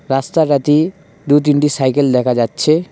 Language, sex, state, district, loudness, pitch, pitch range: Bengali, male, West Bengal, Cooch Behar, -14 LUFS, 145 Hz, 135-155 Hz